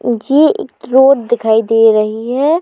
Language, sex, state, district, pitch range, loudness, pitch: Hindi, female, Uttar Pradesh, Jalaun, 225-275 Hz, -12 LUFS, 240 Hz